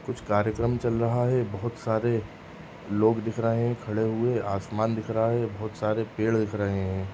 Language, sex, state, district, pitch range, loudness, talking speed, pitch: Bhojpuri, male, Uttar Pradesh, Gorakhpur, 105-115 Hz, -27 LUFS, 195 wpm, 110 Hz